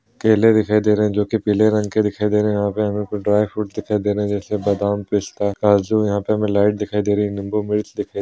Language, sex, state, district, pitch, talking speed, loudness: Hindi, male, Bihar, Kishanganj, 105 Hz, 285 wpm, -19 LUFS